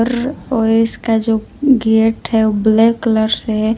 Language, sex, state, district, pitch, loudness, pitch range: Hindi, female, Jharkhand, Palamu, 225 Hz, -15 LUFS, 220-230 Hz